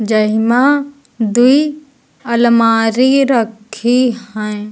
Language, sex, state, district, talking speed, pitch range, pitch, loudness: Hindi, female, Uttar Pradesh, Lucknow, 65 wpm, 220-265 Hz, 235 Hz, -13 LUFS